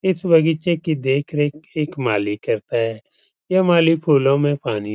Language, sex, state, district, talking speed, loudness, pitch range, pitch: Hindi, male, Uttar Pradesh, Etah, 195 wpm, -19 LUFS, 135-165 Hz, 150 Hz